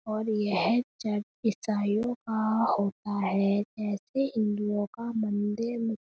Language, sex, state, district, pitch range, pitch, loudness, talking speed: Hindi, female, Uttar Pradesh, Budaun, 205-225 Hz, 215 Hz, -29 LUFS, 120 wpm